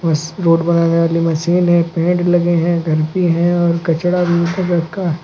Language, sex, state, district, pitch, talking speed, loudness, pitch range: Hindi, male, Uttar Pradesh, Lucknow, 170 Hz, 170 wpm, -15 LUFS, 165-175 Hz